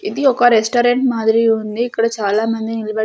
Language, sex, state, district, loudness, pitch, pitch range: Telugu, female, Andhra Pradesh, Sri Satya Sai, -16 LUFS, 225 Hz, 220-240 Hz